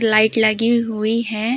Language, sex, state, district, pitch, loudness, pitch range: Hindi, female, Uttar Pradesh, Hamirpur, 225 Hz, -17 LUFS, 215-230 Hz